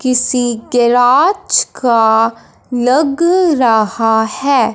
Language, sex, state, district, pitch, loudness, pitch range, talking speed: Hindi, female, Punjab, Fazilka, 245 Hz, -12 LUFS, 230-280 Hz, 75 wpm